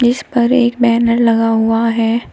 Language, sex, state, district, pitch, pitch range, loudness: Hindi, female, Uttar Pradesh, Shamli, 235 Hz, 230-240 Hz, -13 LUFS